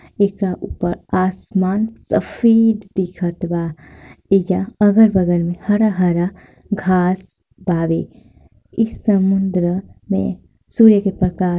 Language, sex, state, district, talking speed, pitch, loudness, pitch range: Bhojpuri, female, Bihar, Gopalganj, 100 wpm, 190 Hz, -17 LUFS, 175-205 Hz